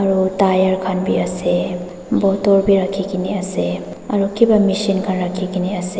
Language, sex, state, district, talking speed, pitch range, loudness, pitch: Nagamese, female, Nagaland, Dimapur, 150 wpm, 185-195 Hz, -17 LUFS, 190 Hz